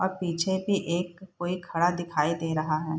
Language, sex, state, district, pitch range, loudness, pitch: Hindi, female, Bihar, Saharsa, 165-185 Hz, -28 LUFS, 175 Hz